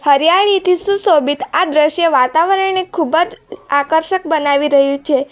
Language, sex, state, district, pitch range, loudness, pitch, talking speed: Gujarati, female, Gujarat, Valsad, 285-365 Hz, -14 LUFS, 320 Hz, 125 wpm